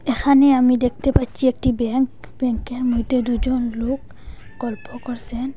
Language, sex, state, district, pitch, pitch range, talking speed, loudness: Bengali, female, Assam, Hailakandi, 250 Hz, 240-260 Hz, 140 wpm, -20 LUFS